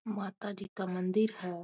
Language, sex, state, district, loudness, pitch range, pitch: Hindi, female, Bihar, Muzaffarpur, -35 LUFS, 185-215 Hz, 200 Hz